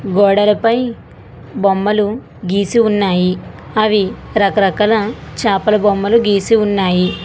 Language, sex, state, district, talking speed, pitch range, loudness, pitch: Telugu, female, Telangana, Hyderabad, 85 wpm, 195-215 Hz, -14 LUFS, 205 Hz